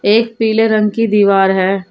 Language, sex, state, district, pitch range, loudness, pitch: Hindi, female, Uttar Pradesh, Shamli, 195-225 Hz, -13 LUFS, 210 Hz